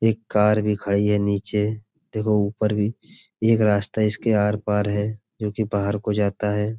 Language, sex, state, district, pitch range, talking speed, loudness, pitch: Hindi, male, Uttar Pradesh, Budaun, 105-110 Hz, 175 wpm, -22 LUFS, 105 Hz